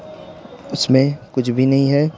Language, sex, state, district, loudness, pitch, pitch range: Hindi, male, Bihar, Patna, -17 LUFS, 135 Hz, 130-145 Hz